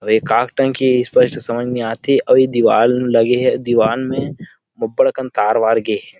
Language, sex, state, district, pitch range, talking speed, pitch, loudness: Chhattisgarhi, male, Chhattisgarh, Rajnandgaon, 115-135 Hz, 205 wpm, 125 Hz, -15 LUFS